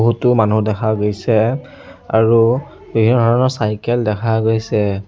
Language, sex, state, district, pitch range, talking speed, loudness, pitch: Assamese, male, Assam, Sonitpur, 110-120 Hz, 95 wpm, -16 LUFS, 110 Hz